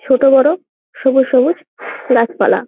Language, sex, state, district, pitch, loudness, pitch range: Bengali, female, West Bengal, Jalpaiguri, 265 Hz, -13 LUFS, 260-280 Hz